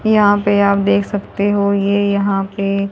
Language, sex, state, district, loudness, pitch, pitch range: Hindi, female, Haryana, Rohtak, -15 LUFS, 200 Hz, 200-205 Hz